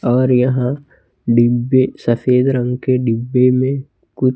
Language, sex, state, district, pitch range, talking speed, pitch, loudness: Hindi, male, Chhattisgarh, Raipur, 120-130 Hz, 125 wpm, 125 Hz, -15 LUFS